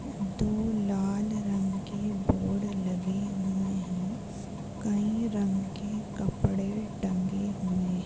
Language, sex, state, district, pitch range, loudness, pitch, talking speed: Hindi, female, Maharashtra, Dhule, 190-210 Hz, -31 LUFS, 195 Hz, 105 wpm